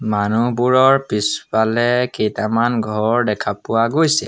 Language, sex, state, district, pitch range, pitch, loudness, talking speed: Assamese, male, Assam, Sonitpur, 110-125 Hz, 115 Hz, -17 LUFS, 100 wpm